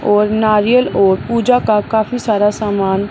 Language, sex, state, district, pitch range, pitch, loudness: Hindi, female, Punjab, Fazilka, 205-230 Hz, 210 Hz, -14 LUFS